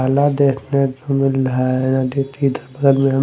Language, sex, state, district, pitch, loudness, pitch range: Hindi, male, Delhi, New Delhi, 135 Hz, -17 LUFS, 130-140 Hz